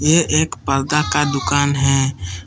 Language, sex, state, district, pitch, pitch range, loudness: Hindi, male, Jharkhand, Palamu, 140 Hz, 135-150 Hz, -17 LUFS